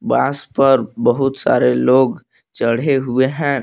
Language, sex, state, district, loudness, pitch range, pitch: Hindi, male, Jharkhand, Palamu, -16 LUFS, 120-135 Hz, 130 Hz